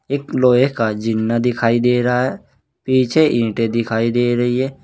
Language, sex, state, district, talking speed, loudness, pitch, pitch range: Hindi, male, Uttar Pradesh, Saharanpur, 175 wpm, -17 LUFS, 120 Hz, 115-130 Hz